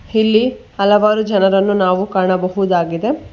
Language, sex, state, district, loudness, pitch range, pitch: Kannada, female, Karnataka, Bangalore, -15 LUFS, 185-220 Hz, 200 Hz